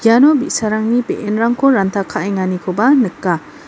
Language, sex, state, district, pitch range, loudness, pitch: Garo, female, Meghalaya, North Garo Hills, 195-245 Hz, -15 LUFS, 215 Hz